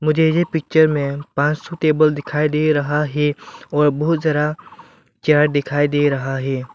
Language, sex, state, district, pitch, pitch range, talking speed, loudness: Hindi, male, Arunachal Pradesh, Lower Dibang Valley, 150 Hz, 145-155 Hz, 170 wpm, -18 LUFS